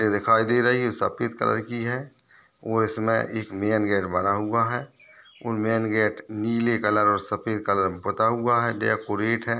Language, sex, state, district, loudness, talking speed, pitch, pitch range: Hindi, male, Chhattisgarh, Balrampur, -24 LUFS, 185 wpm, 110 Hz, 105-115 Hz